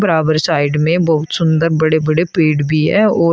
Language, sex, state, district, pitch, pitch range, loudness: Hindi, female, Uttar Pradesh, Shamli, 160 Hz, 155-170 Hz, -14 LUFS